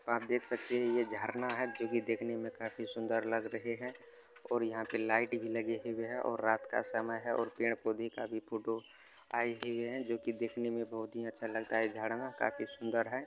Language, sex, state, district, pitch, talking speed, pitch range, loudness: Hindi, male, Bihar, Supaul, 115 Hz, 220 wpm, 115-120 Hz, -37 LUFS